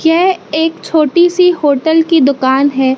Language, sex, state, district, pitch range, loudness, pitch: Hindi, female, Madhya Pradesh, Katni, 280-335 Hz, -11 LUFS, 320 Hz